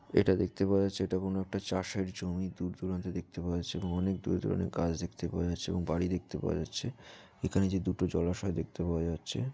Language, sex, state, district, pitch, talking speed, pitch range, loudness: Bengali, male, West Bengal, Jalpaiguri, 90 Hz, 205 wpm, 85-95 Hz, -34 LUFS